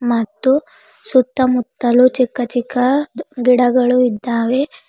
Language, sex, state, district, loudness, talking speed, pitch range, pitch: Kannada, female, Karnataka, Bidar, -16 LUFS, 85 wpm, 245-260 Hz, 250 Hz